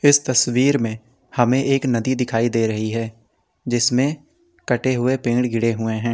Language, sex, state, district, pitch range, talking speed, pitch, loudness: Hindi, male, Uttar Pradesh, Lalitpur, 115-130 Hz, 165 wpm, 120 Hz, -20 LUFS